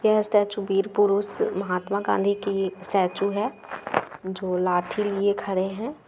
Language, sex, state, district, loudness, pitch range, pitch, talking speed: Hindi, female, Bihar, Gaya, -25 LUFS, 190-205 Hz, 200 Hz, 150 wpm